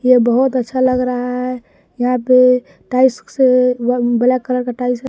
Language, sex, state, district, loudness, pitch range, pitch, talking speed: Hindi, male, Bihar, West Champaran, -15 LUFS, 245-255 Hz, 250 Hz, 175 wpm